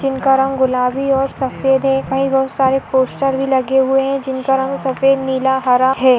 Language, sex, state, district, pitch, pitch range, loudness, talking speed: Hindi, female, Maharashtra, Sindhudurg, 265 Hz, 265-270 Hz, -16 LUFS, 195 wpm